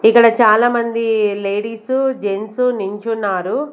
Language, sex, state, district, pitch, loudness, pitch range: Telugu, female, Andhra Pradesh, Sri Satya Sai, 225 Hz, -16 LUFS, 210-240 Hz